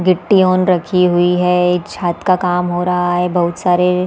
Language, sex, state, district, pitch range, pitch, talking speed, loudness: Hindi, female, Chhattisgarh, Balrampur, 175-180 Hz, 180 Hz, 190 wpm, -14 LUFS